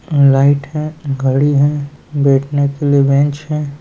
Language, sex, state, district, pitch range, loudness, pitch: Hindi, male, Bihar, Sitamarhi, 140-145 Hz, -14 LUFS, 140 Hz